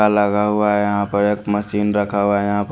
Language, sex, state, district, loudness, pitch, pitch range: Hindi, male, Haryana, Charkhi Dadri, -18 LUFS, 105 Hz, 100-105 Hz